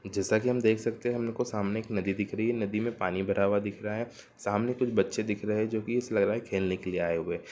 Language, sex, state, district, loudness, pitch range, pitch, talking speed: Hindi, male, Bihar, Gopalganj, -30 LUFS, 100-115 Hz, 105 Hz, 325 wpm